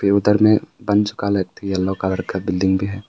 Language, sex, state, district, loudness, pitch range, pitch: Hindi, male, Arunachal Pradesh, Papum Pare, -19 LUFS, 95-105 Hz, 100 Hz